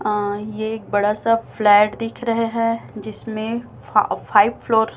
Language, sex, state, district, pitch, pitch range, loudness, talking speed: Hindi, female, Chhattisgarh, Raipur, 220 Hz, 210-230 Hz, -20 LUFS, 155 wpm